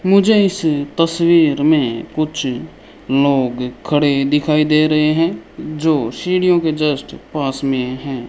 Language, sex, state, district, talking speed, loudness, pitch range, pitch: Hindi, male, Rajasthan, Bikaner, 130 wpm, -16 LUFS, 135-165 Hz, 150 Hz